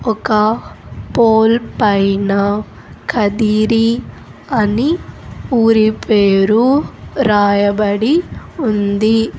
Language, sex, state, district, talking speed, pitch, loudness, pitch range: Telugu, female, Andhra Pradesh, Sri Satya Sai, 60 wpm, 220 Hz, -14 LUFS, 205-230 Hz